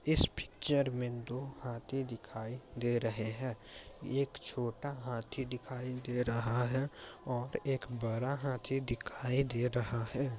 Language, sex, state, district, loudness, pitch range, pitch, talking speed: Hindi, male, Bihar, Muzaffarpur, -36 LUFS, 120-135 Hz, 125 Hz, 140 wpm